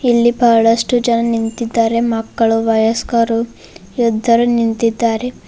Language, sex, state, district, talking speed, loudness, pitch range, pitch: Kannada, female, Karnataka, Bidar, 90 wpm, -14 LUFS, 225-235 Hz, 230 Hz